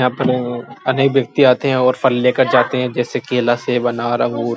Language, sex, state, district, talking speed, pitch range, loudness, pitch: Hindi, male, Uttar Pradesh, Muzaffarnagar, 225 wpm, 120-130 Hz, -16 LUFS, 125 Hz